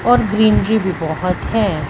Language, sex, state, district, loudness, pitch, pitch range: Hindi, female, Punjab, Fazilka, -16 LUFS, 205 Hz, 170-220 Hz